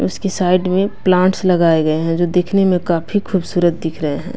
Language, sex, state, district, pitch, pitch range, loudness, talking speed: Hindi, female, Bihar, West Champaran, 180 Hz, 165-185 Hz, -16 LUFS, 205 wpm